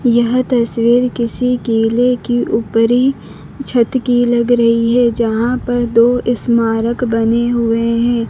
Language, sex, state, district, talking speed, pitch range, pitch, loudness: Hindi, female, Madhya Pradesh, Dhar, 130 wpm, 230-245 Hz, 235 Hz, -14 LUFS